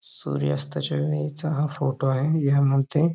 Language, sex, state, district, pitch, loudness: Marathi, male, Maharashtra, Pune, 135 Hz, -24 LUFS